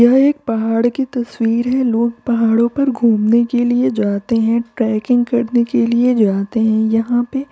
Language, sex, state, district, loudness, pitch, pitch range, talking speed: Hindi, female, Uttar Pradesh, Varanasi, -15 LUFS, 235 Hz, 225-245 Hz, 185 wpm